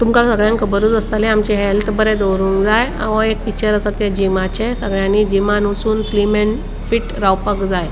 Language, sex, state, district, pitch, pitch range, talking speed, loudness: Konkani, female, Goa, North and South Goa, 210 Hz, 200-220 Hz, 175 wpm, -16 LUFS